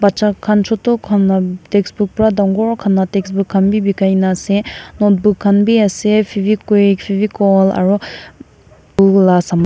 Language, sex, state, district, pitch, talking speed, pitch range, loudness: Nagamese, female, Nagaland, Kohima, 200 Hz, 135 wpm, 195-210 Hz, -14 LUFS